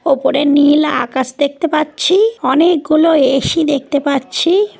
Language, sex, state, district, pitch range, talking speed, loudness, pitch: Bengali, female, West Bengal, Paschim Medinipur, 280-325 Hz, 125 wpm, -13 LUFS, 295 Hz